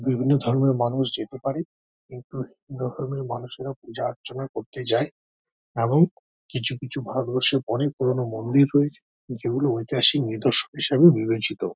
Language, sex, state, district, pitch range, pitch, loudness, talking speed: Bengali, male, West Bengal, Dakshin Dinajpur, 125-140 Hz, 130 Hz, -23 LUFS, 130 wpm